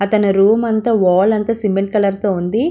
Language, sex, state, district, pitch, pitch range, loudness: Telugu, female, Andhra Pradesh, Visakhapatnam, 205 Hz, 195-220 Hz, -15 LUFS